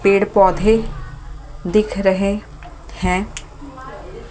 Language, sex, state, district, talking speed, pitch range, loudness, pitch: Hindi, female, Delhi, New Delhi, 70 wpm, 150-200 Hz, -17 LUFS, 190 Hz